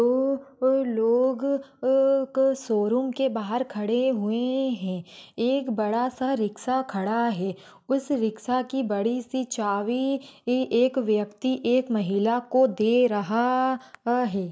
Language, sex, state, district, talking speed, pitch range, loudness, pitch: Hindi, female, Maharashtra, Pune, 130 wpm, 220-260 Hz, -25 LUFS, 245 Hz